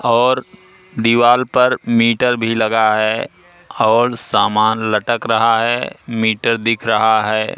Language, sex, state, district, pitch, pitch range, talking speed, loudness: Hindi, male, Madhya Pradesh, Katni, 115 Hz, 110-120 Hz, 125 wpm, -15 LUFS